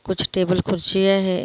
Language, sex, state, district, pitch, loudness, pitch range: Hindi, female, Chhattisgarh, Korba, 190 Hz, -20 LUFS, 185-195 Hz